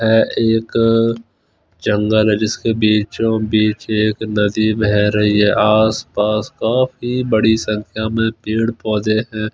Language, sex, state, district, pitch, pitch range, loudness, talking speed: Hindi, male, Punjab, Fazilka, 110 Hz, 105-115 Hz, -16 LUFS, 125 wpm